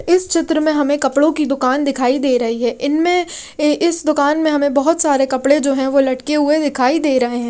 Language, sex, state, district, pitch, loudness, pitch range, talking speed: Hindi, female, Haryana, Rohtak, 285 Hz, -16 LUFS, 265-310 Hz, 225 wpm